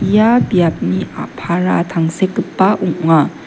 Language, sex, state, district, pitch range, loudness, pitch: Garo, female, Meghalaya, West Garo Hills, 165-195 Hz, -15 LUFS, 180 Hz